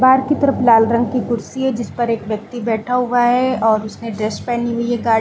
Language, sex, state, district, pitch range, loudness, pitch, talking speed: Hindi, female, Chhattisgarh, Balrampur, 225-250 Hz, -17 LUFS, 235 Hz, 265 wpm